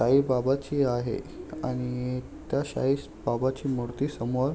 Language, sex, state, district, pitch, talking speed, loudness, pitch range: Marathi, male, Maharashtra, Aurangabad, 130 Hz, 90 wpm, -29 LUFS, 125-140 Hz